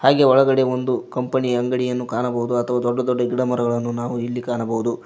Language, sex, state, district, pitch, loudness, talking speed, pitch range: Kannada, male, Karnataka, Koppal, 125 Hz, -20 LUFS, 165 wpm, 120-125 Hz